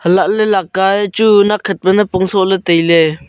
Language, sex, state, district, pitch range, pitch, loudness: Wancho, male, Arunachal Pradesh, Longding, 185-205 Hz, 190 Hz, -12 LUFS